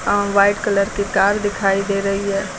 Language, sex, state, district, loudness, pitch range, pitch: Hindi, female, Uttar Pradesh, Lucknow, -18 LUFS, 195-205 Hz, 200 Hz